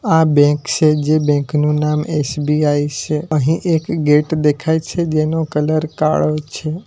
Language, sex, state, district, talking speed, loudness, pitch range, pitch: Gujarati, male, Gujarat, Valsad, 150 wpm, -16 LUFS, 150-160 Hz, 155 Hz